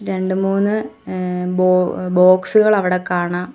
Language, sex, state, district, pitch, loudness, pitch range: Malayalam, female, Kerala, Kollam, 185 Hz, -16 LUFS, 180-195 Hz